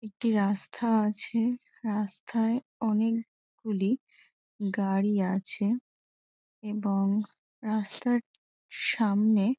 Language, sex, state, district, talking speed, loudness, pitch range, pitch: Bengali, female, West Bengal, Dakshin Dinajpur, 70 wpm, -29 LUFS, 205-230 Hz, 215 Hz